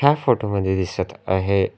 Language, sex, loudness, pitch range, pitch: Marathi, male, -21 LUFS, 95-115 Hz, 100 Hz